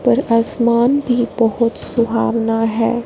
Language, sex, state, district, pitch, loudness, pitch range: Hindi, female, Punjab, Fazilka, 235 Hz, -16 LUFS, 230-240 Hz